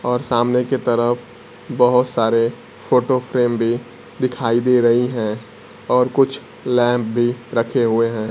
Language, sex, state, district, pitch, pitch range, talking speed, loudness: Hindi, male, Bihar, Kaimur, 120 Hz, 115-125 Hz, 145 wpm, -18 LUFS